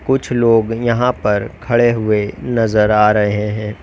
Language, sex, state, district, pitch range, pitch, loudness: Hindi, male, Uttar Pradesh, Lalitpur, 105-120 Hz, 115 Hz, -15 LUFS